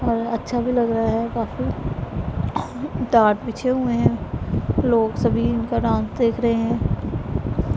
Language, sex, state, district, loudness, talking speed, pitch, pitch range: Hindi, female, Punjab, Pathankot, -22 LUFS, 145 wpm, 230 Hz, 210-240 Hz